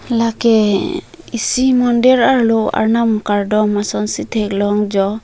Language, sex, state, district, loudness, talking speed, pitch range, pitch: Karbi, female, Assam, Karbi Anglong, -15 LUFS, 105 wpm, 210-245 Hz, 225 Hz